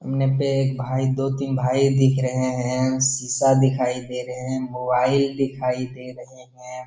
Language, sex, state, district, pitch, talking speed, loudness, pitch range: Hindi, male, Bihar, Jamui, 130 Hz, 190 wpm, -22 LUFS, 125-135 Hz